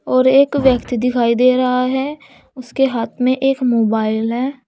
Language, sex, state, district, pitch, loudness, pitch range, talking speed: Hindi, female, Uttar Pradesh, Saharanpur, 255 Hz, -16 LUFS, 240-265 Hz, 165 wpm